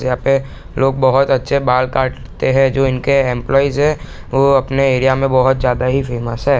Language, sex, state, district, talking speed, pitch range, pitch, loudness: Hindi, male, Bihar, East Champaran, 180 wpm, 130-135 Hz, 135 Hz, -15 LUFS